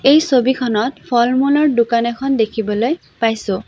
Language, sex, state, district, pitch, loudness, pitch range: Assamese, female, Assam, Sonitpur, 240 Hz, -16 LUFS, 225-270 Hz